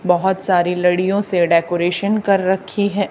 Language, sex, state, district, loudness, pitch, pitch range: Hindi, female, Haryana, Charkhi Dadri, -17 LUFS, 190 Hz, 180-200 Hz